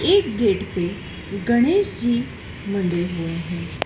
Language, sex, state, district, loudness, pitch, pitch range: Hindi, female, Madhya Pradesh, Dhar, -22 LUFS, 200 Hz, 175-240 Hz